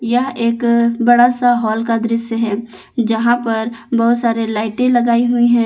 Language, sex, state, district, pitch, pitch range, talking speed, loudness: Hindi, female, Jharkhand, Palamu, 235 Hz, 230-240 Hz, 170 wpm, -15 LUFS